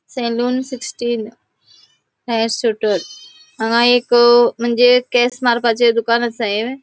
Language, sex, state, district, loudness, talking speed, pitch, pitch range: Konkani, female, Goa, North and South Goa, -16 LUFS, 70 wpm, 240 Hz, 230-245 Hz